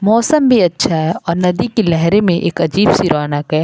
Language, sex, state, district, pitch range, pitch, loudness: Hindi, female, Uttar Pradesh, Lucknow, 165-210 Hz, 175 Hz, -14 LUFS